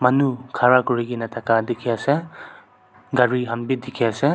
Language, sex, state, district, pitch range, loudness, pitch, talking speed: Nagamese, male, Nagaland, Kohima, 120-130 Hz, -21 LUFS, 125 Hz, 125 wpm